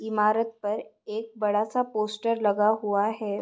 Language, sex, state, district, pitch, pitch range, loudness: Hindi, female, Maharashtra, Sindhudurg, 215 Hz, 210-220 Hz, -27 LUFS